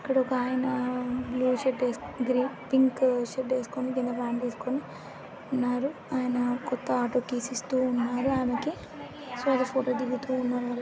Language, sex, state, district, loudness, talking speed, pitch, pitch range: Telugu, female, Andhra Pradesh, Anantapur, -29 LUFS, 130 wpm, 255 Hz, 245-260 Hz